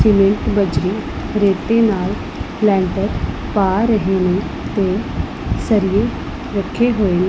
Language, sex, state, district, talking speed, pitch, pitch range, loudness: Punjabi, female, Punjab, Pathankot, 105 wpm, 200 Hz, 190-215 Hz, -17 LUFS